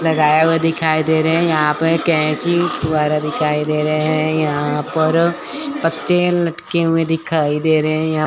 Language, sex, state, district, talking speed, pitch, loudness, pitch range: Hindi, male, Chandigarh, Chandigarh, 165 wpm, 155 Hz, -16 LUFS, 155-165 Hz